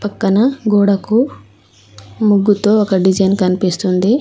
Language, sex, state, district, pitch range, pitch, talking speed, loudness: Telugu, female, Telangana, Mahabubabad, 185-210 Hz, 195 Hz, 85 wpm, -14 LUFS